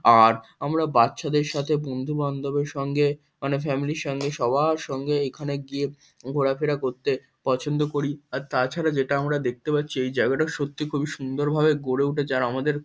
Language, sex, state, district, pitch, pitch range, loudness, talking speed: Bengali, male, West Bengal, Kolkata, 140 Hz, 135-150 Hz, -25 LUFS, 160 wpm